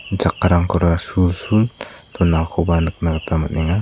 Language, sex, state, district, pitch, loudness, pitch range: Garo, male, Meghalaya, South Garo Hills, 85 Hz, -18 LUFS, 80-90 Hz